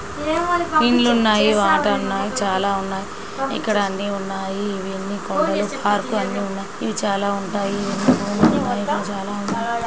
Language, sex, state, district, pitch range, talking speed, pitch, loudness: Telugu, female, Andhra Pradesh, Chittoor, 195-230 Hz, 95 wpm, 205 Hz, -20 LUFS